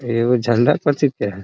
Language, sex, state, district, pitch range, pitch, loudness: Hindi, male, Bihar, Muzaffarpur, 115-145 Hz, 120 Hz, -17 LUFS